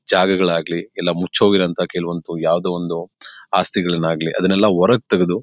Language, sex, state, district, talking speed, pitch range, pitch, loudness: Kannada, male, Karnataka, Bellary, 120 wpm, 85-90 Hz, 90 Hz, -18 LUFS